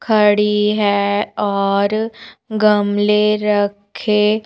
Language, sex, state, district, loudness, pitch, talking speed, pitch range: Hindi, female, Madhya Pradesh, Bhopal, -16 LUFS, 210 Hz, 65 wpm, 205-215 Hz